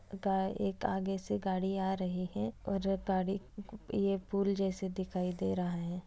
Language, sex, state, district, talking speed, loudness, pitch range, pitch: Hindi, female, Bihar, East Champaran, 160 wpm, -35 LUFS, 185-195 Hz, 190 Hz